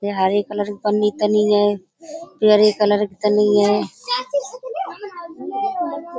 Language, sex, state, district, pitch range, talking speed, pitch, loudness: Hindi, female, Uttar Pradesh, Budaun, 205-325 Hz, 135 wpm, 210 Hz, -19 LUFS